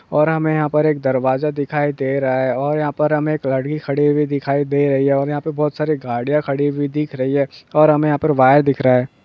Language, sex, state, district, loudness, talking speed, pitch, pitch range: Hindi, male, West Bengal, Purulia, -17 LUFS, 255 wpm, 145 Hz, 135-150 Hz